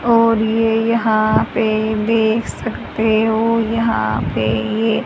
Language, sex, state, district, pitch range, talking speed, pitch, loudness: Hindi, female, Haryana, Rohtak, 215-225 Hz, 120 wpm, 220 Hz, -17 LUFS